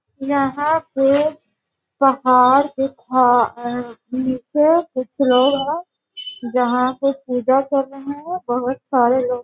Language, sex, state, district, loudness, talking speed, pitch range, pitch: Hindi, female, Bihar, Sitamarhi, -18 LUFS, 100 wpm, 250-280 Hz, 265 Hz